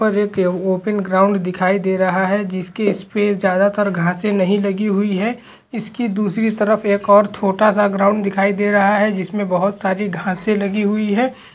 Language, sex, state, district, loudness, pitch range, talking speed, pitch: Hindi, male, Uttarakhand, Tehri Garhwal, -17 LUFS, 190-210 Hz, 185 wpm, 200 Hz